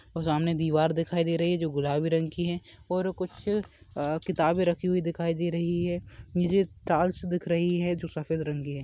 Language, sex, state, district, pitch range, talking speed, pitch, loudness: Hindi, male, Rajasthan, Churu, 160-175 Hz, 205 wpm, 170 Hz, -28 LUFS